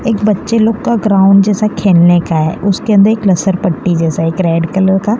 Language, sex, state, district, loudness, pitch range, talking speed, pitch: Hindi, female, Gujarat, Valsad, -11 LUFS, 175-210 Hz, 205 wpm, 195 Hz